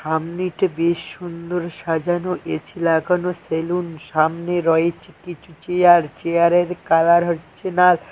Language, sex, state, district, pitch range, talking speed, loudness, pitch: Bengali, male, West Bengal, Cooch Behar, 165-180 Hz, 110 wpm, -19 LUFS, 170 Hz